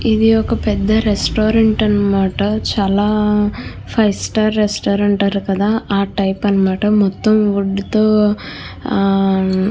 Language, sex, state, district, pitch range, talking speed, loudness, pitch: Telugu, female, Andhra Pradesh, Krishna, 200-215 Hz, 110 wpm, -15 LUFS, 205 Hz